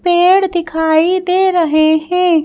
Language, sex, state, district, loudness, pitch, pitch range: Hindi, female, Madhya Pradesh, Bhopal, -12 LUFS, 345 Hz, 320-360 Hz